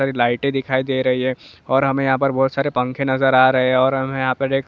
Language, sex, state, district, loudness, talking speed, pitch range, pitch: Hindi, male, Jharkhand, Jamtara, -18 LUFS, 270 wpm, 130-135 Hz, 130 Hz